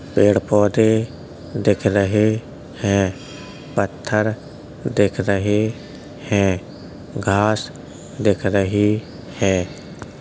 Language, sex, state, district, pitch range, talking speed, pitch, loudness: Hindi, male, Uttar Pradesh, Jalaun, 100-110 Hz, 70 wpm, 105 Hz, -19 LUFS